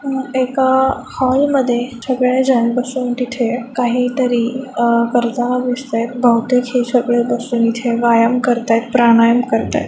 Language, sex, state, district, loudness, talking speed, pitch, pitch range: Marathi, female, Maharashtra, Chandrapur, -15 LUFS, 140 wpm, 245 Hz, 235-255 Hz